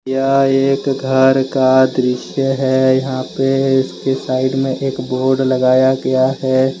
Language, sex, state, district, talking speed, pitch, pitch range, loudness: Hindi, male, Jharkhand, Deoghar, 140 wpm, 130 Hz, 130-135 Hz, -15 LUFS